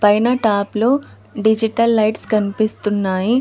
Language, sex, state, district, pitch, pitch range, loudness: Telugu, female, Telangana, Hyderabad, 215 Hz, 205-230 Hz, -17 LUFS